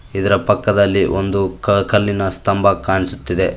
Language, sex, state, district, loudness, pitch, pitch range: Kannada, male, Karnataka, Koppal, -16 LUFS, 100 Hz, 95-100 Hz